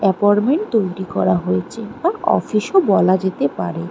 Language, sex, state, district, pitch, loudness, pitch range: Bengali, female, West Bengal, Malda, 195 Hz, -18 LUFS, 170-230 Hz